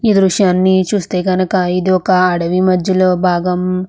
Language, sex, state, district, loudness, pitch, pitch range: Telugu, female, Andhra Pradesh, Krishna, -13 LUFS, 185 Hz, 180-185 Hz